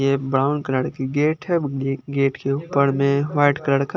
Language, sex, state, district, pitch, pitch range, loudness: Hindi, male, Chandigarh, Chandigarh, 140 Hz, 135-145 Hz, -21 LUFS